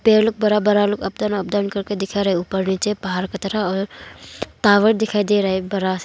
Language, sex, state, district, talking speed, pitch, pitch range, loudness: Hindi, female, Arunachal Pradesh, Longding, 210 wpm, 205 Hz, 190-210 Hz, -19 LUFS